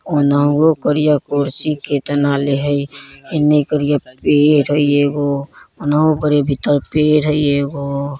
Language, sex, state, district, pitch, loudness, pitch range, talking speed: Bajjika, male, Bihar, Vaishali, 145 Hz, -15 LUFS, 140-150 Hz, 130 wpm